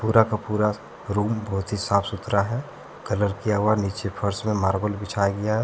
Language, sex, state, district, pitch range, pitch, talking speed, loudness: Hindi, male, Jharkhand, Deoghar, 100-110 Hz, 105 Hz, 200 wpm, -24 LUFS